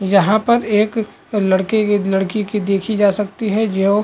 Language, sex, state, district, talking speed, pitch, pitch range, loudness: Hindi, male, Chhattisgarh, Korba, 180 wpm, 210 Hz, 195-215 Hz, -17 LUFS